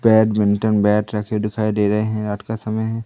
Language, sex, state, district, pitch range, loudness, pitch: Hindi, male, Madhya Pradesh, Katni, 105-110 Hz, -19 LUFS, 105 Hz